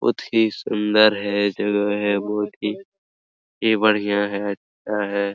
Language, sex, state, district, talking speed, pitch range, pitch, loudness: Hindi, male, Bihar, Araria, 125 wpm, 100-110 Hz, 105 Hz, -21 LUFS